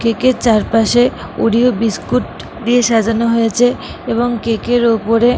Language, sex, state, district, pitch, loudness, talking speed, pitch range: Bengali, female, West Bengal, Kolkata, 230 Hz, -14 LUFS, 135 wpm, 225-245 Hz